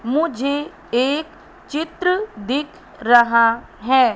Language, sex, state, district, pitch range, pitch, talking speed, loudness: Hindi, female, Madhya Pradesh, Katni, 240-320 Hz, 275 Hz, 85 wpm, -19 LUFS